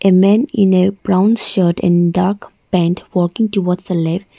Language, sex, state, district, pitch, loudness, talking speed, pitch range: English, female, Arunachal Pradesh, Lower Dibang Valley, 185 Hz, -14 LUFS, 180 wpm, 175-200 Hz